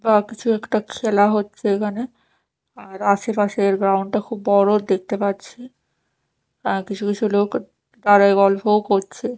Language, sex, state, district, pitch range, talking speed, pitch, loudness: Bengali, female, Odisha, Nuapada, 200-220 Hz, 135 wpm, 205 Hz, -19 LUFS